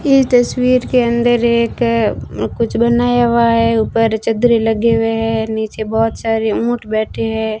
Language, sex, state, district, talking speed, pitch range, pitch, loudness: Hindi, female, Rajasthan, Bikaner, 160 wpm, 225-240 Hz, 230 Hz, -15 LUFS